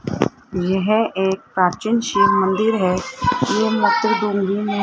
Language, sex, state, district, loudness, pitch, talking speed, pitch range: Hindi, male, Rajasthan, Jaipur, -19 LUFS, 205 Hz, 125 wpm, 190-220 Hz